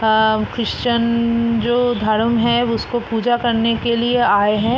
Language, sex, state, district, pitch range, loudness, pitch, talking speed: Hindi, female, Bihar, East Champaran, 225-240 Hz, -17 LUFS, 235 Hz, 150 wpm